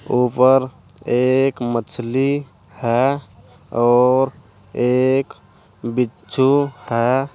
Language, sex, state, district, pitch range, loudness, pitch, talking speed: Hindi, male, Uttar Pradesh, Saharanpur, 115-135 Hz, -18 LUFS, 125 Hz, 65 wpm